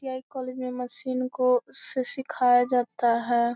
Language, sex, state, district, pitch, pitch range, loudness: Hindi, female, Bihar, Gopalganj, 250 Hz, 245-255 Hz, -26 LUFS